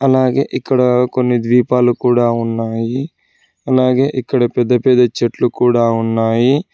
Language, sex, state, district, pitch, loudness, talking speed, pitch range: Telugu, male, Telangana, Hyderabad, 125 Hz, -14 LUFS, 115 wpm, 120-130 Hz